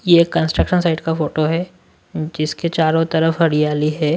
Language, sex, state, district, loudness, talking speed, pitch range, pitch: Hindi, male, Maharashtra, Washim, -17 LUFS, 160 wpm, 155-170 Hz, 160 Hz